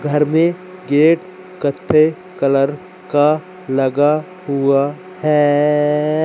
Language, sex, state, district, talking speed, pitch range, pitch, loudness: Hindi, male, Madhya Pradesh, Katni, 85 wpm, 145-180 Hz, 150 Hz, -16 LUFS